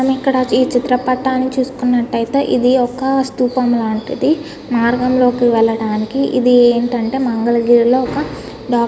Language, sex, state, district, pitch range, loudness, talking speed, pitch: Telugu, female, Andhra Pradesh, Guntur, 240-260 Hz, -15 LUFS, 120 wpm, 250 Hz